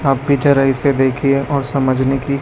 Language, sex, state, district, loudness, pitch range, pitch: Hindi, male, Chhattisgarh, Raipur, -15 LUFS, 135-140 Hz, 135 Hz